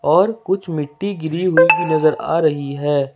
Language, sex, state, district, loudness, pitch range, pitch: Hindi, male, Jharkhand, Ranchi, -17 LUFS, 150-180 Hz, 160 Hz